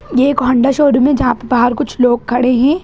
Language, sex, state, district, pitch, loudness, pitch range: Hindi, female, Bihar, Jahanabad, 255 Hz, -13 LUFS, 245-280 Hz